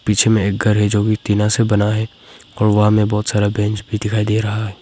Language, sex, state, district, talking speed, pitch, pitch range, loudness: Hindi, male, Arunachal Pradesh, Papum Pare, 275 wpm, 105 Hz, 105-110 Hz, -16 LUFS